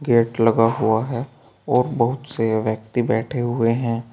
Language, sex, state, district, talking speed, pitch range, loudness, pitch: Hindi, male, Uttar Pradesh, Saharanpur, 160 wpm, 115-125 Hz, -20 LUFS, 115 Hz